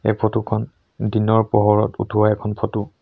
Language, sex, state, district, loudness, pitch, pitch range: Assamese, male, Assam, Sonitpur, -19 LUFS, 105 Hz, 105-110 Hz